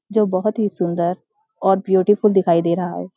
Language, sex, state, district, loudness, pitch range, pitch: Hindi, female, Uttarakhand, Uttarkashi, -18 LUFS, 175-210 Hz, 190 Hz